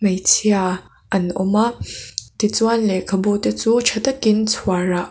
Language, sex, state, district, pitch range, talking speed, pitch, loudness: Mizo, female, Mizoram, Aizawl, 185-220 Hz, 130 wpm, 205 Hz, -18 LUFS